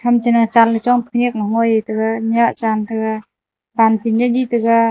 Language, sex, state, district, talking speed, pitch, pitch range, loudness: Wancho, female, Arunachal Pradesh, Longding, 185 wpm, 230 Hz, 220-240 Hz, -16 LUFS